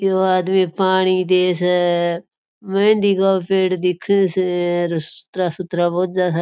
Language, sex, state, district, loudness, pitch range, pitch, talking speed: Marwari, female, Rajasthan, Churu, -18 LUFS, 175-190 Hz, 185 Hz, 140 wpm